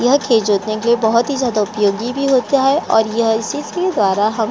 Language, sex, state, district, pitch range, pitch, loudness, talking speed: Hindi, female, Chhattisgarh, Korba, 215-270 Hz, 230 Hz, -16 LUFS, 255 wpm